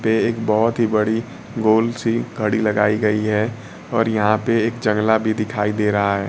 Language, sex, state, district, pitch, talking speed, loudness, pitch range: Hindi, male, Bihar, Kaimur, 110 Hz, 200 wpm, -19 LUFS, 105-115 Hz